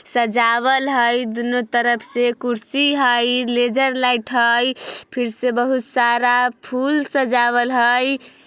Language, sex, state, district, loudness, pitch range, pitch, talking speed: Bajjika, female, Bihar, Vaishali, -18 LUFS, 240-255 Hz, 245 Hz, 120 wpm